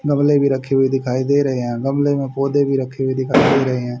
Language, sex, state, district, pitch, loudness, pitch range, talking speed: Hindi, male, Haryana, Rohtak, 135 Hz, -17 LUFS, 130-140 Hz, 270 wpm